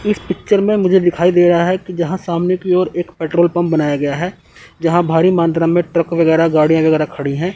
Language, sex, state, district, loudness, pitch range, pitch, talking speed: Hindi, male, Chandigarh, Chandigarh, -15 LUFS, 165-180 Hz, 170 Hz, 230 wpm